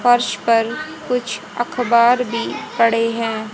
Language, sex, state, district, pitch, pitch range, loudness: Hindi, female, Haryana, Jhajjar, 235 Hz, 230-245 Hz, -18 LUFS